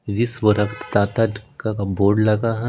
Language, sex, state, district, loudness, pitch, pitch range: Hindi, male, Bihar, Patna, -20 LUFS, 105 Hz, 100-115 Hz